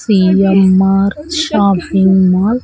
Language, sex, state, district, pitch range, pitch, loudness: Telugu, female, Andhra Pradesh, Sri Satya Sai, 190-210 Hz, 195 Hz, -11 LUFS